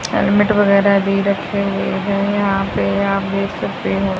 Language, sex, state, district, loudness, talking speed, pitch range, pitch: Hindi, female, Haryana, Jhajjar, -17 LUFS, 170 wpm, 195-200 Hz, 200 Hz